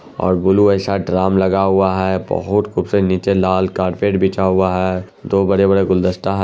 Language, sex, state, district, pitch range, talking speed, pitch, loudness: Hindi, male, Bihar, Araria, 95-100 Hz, 165 wpm, 95 Hz, -16 LUFS